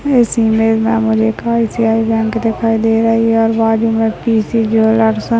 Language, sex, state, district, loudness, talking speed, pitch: Hindi, male, Maharashtra, Nagpur, -13 LUFS, 165 wpm, 225 Hz